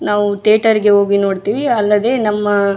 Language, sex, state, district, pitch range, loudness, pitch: Kannada, female, Karnataka, Raichur, 200-215 Hz, -14 LUFS, 210 Hz